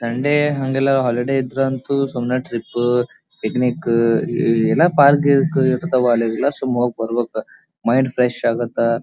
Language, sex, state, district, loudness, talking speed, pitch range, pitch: Kannada, male, Karnataka, Dharwad, -18 LUFS, 125 wpm, 120-135 Hz, 125 Hz